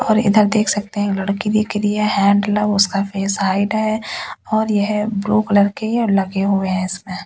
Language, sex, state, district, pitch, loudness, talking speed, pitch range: Hindi, female, Delhi, New Delhi, 205 Hz, -17 LUFS, 200 wpm, 195-215 Hz